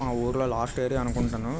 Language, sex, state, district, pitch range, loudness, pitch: Telugu, male, Andhra Pradesh, Krishna, 120-130 Hz, -28 LUFS, 120 Hz